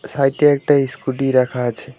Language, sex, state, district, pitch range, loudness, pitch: Bengali, male, West Bengal, Alipurduar, 130-140 Hz, -17 LUFS, 130 Hz